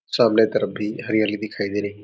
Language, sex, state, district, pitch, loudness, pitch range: Hindi, male, Chhattisgarh, Raigarh, 105 Hz, -21 LUFS, 105-110 Hz